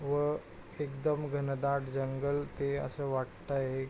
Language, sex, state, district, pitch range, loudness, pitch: Marathi, male, Maharashtra, Pune, 135-145 Hz, -35 LUFS, 140 Hz